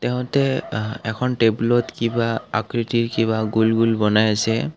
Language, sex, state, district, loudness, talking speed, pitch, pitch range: Assamese, male, Assam, Kamrup Metropolitan, -20 LUFS, 125 wpm, 115 Hz, 110-120 Hz